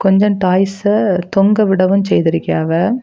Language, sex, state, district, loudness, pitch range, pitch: Tamil, female, Tamil Nadu, Kanyakumari, -14 LUFS, 185-205 Hz, 195 Hz